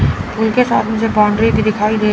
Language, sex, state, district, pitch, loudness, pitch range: Hindi, female, Chandigarh, Chandigarh, 220 Hz, -14 LUFS, 210-225 Hz